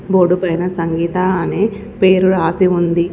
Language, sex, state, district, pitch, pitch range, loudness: Telugu, female, Telangana, Komaram Bheem, 180 Hz, 170-190 Hz, -15 LUFS